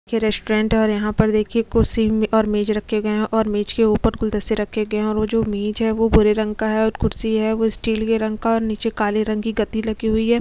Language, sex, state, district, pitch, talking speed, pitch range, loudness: Hindi, female, Chhattisgarh, Sukma, 220 Hz, 270 wpm, 215-225 Hz, -20 LUFS